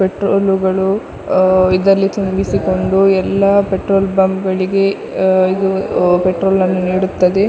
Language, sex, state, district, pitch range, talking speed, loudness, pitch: Kannada, female, Karnataka, Dakshina Kannada, 185-195 Hz, 110 wpm, -14 LUFS, 190 Hz